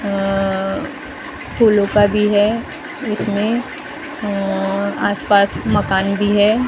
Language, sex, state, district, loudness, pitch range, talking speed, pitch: Hindi, female, Maharashtra, Gondia, -17 LUFS, 200-220 Hz, 110 wpm, 205 Hz